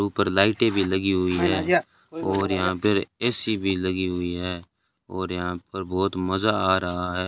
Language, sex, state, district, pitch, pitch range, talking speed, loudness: Hindi, male, Rajasthan, Bikaner, 95 Hz, 90-100 Hz, 180 wpm, -24 LUFS